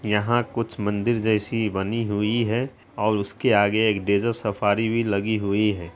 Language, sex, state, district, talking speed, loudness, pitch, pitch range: Hindi, female, Bihar, Araria, 170 wpm, -23 LUFS, 110 Hz, 100-115 Hz